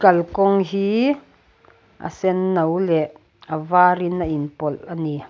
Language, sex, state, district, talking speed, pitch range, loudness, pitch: Mizo, female, Mizoram, Aizawl, 135 wpm, 155-190 Hz, -20 LUFS, 175 Hz